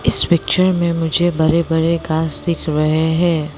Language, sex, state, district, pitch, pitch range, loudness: Hindi, female, Arunachal Pradesh, Lower Dibang Valley, 165 Hz, 160-170 Hz, -16 LUFS